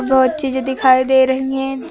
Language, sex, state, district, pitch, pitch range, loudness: Hindi, female, Uttar Pradesh, Lucknow, 265 Hz, 260-265 Hz, -15 LUFS